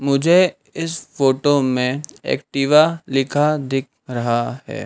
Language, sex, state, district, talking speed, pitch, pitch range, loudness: Hindi, male, Madhya Pradesh, Dhar, 110 wpm, 140 Hz, 130-150 Hz, -19 LUFS